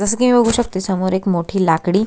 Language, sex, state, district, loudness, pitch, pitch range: Marathi, female, Maharashtra, Solapur, -16 LUFS, 190 Hz, 185-225 Hz